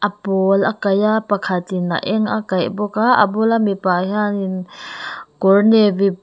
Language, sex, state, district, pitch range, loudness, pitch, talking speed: Mizo, female, Mizoram, Aizawl, 190-210 Hz, -17 LUFS, 200 Hz, 185 wpm